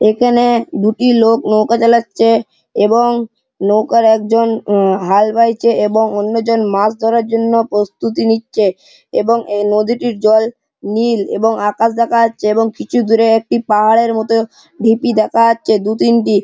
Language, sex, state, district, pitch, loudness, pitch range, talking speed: Bengali, male, West Bengal, Malda, 225 Hz, -13 LUFS, 215-230 Hz, 140 wpm